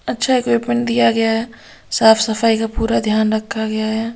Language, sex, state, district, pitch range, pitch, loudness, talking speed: Hindi, female, Bihar, Katihar, 220-235 Hz, 225 Hz, -16 LUFS, 215 wpm